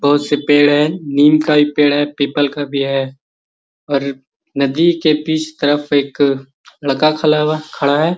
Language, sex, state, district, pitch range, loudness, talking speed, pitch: Magahi, male, Bihar, Gaya, 140-155 Hz, -15 LUFS, 185 wpm, 145 Hz